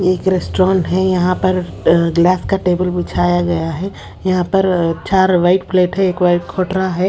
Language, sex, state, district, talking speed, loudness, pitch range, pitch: Hindi, female, Odisha, Sambalpur, 185 wpm, -15 LUFS, 175-185 Hz, 180 Hz